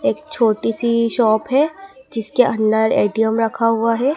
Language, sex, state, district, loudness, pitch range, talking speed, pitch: Hindi, female, Madhya Pradesh, Dhar, -17 LUFS, 225-260 Hz, 160 wpm, 230 Hz